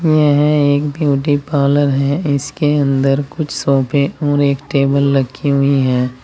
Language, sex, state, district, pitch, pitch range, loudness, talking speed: Hindi, male, Uttar Pradesh, Saharanpur, 140 Hz, 140-145 Hz, -15 LUFS, 145 wpm